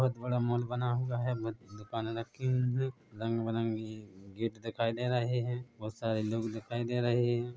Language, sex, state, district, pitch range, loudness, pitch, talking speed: Hindi, male, Chhattisgarh, Bilaspur, 115-125 Hz, -34 LUFS, 120 Hz, 175 wpm